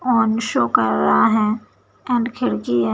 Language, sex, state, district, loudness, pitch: Hindi, female, Bihar, Bhagalpur, -18 LUFS, 220 Hz